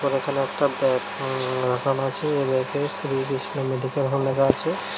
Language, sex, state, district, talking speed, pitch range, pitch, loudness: Bengali, male, Tripura, West Tripura, 145 wpm, 135-140 Hz, 135 Hz, -24 LUFS